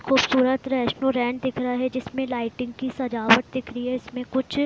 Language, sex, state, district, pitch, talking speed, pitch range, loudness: Hindi, female, Bihar, Gopalganj, 255 Hz, 180 wpm, 245-260 Hz, -24 LUFS